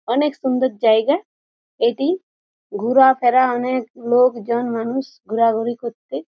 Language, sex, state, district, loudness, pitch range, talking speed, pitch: Bengali, female, West Bengal, Jhargram, -18 LUFS, 230-265 Hz, 105 wpm, 245 Hz